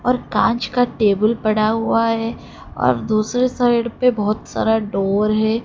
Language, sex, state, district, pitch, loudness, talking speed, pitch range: Hindi, female, Odisha, Khordha, 225 Hz, -18 LUFS, 160 wpm, 215-240 Hz